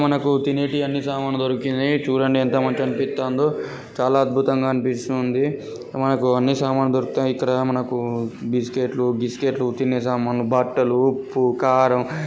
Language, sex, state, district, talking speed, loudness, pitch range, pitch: Telugu, male, Telangana, Karimnagar, 120 wpm, -21 LUFS, 125-135 Hz, 130 Hz